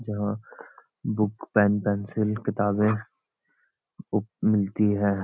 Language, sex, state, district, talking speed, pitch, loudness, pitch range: Hindi, male, Uttarakhand, Uttarkashi, 90 wpm, 105 Hz, -26 LUFS, 100-105 Hz